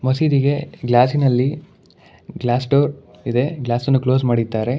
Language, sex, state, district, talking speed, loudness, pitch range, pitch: Kannada, male, Karnataka, Bangalore, 100 wpm, -18 LUFS, 125-145 Hz, 130 Hz